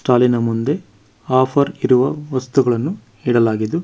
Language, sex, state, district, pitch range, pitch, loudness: Kannada, male, Karnataka, Bangalore, 115-140 Hz, 125 Hz, -17 LUFS